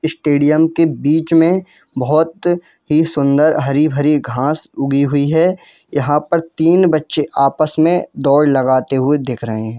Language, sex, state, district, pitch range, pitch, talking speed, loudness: Hindi, male, Jharkhand, Jamtara, 140-165 Hz, 150 Hz, 140 wpm, -14 LUFS